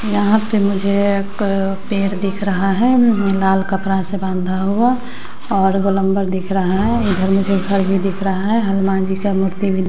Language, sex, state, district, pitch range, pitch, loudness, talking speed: Hindi, female, Bihar, West Champaran, 190-200 Hz, 195 Hz, -17 LUFS, 195 wpm